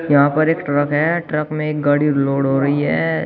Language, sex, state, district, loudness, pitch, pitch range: Hindi, male, Uttar Pradesh, Shamli, -17 LUFS, 145 Hz, 145-155 Hz